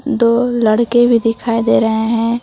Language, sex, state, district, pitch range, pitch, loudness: Hindi, female, Jharkhand, Palamu, 225-240 Hz, 230 Hz, -14 LUFS